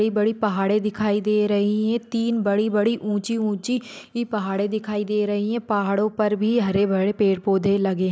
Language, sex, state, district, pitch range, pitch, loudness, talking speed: Hindi, female, Maharashtra, Sindhudurg, 200-215 Hz, 210 Hz, -22 LUFS, 185 wpm